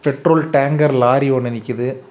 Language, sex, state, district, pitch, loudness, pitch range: Tamil, male, Tamil Nadu, Kanyakumari, 135 Hz, -16 LUFS, 125-145 Hz